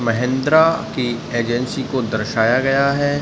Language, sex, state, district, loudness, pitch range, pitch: Hindi, male, Uttar Pradesh, Budaun, -18 LUFS, 120-140 Hz, 125 Hz